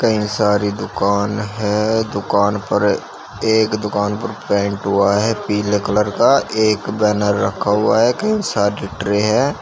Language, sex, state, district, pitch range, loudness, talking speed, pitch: Hindi, male, Uttar Pradesh, Shamli, 100-110 Hz, -17 LUFS, 150 wpm, 105 Hz